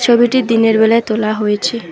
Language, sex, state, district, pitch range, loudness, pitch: Bengali, female, West Bengal, Alipurduar, 215-235 Hz, -13 LUFS, 225 Hz